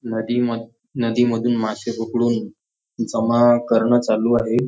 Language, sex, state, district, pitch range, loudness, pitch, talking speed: Marathi, male, Maharashtra, Nagpur, 115-120 Hz, -19 LUFS, 115 Hz, 105 wpm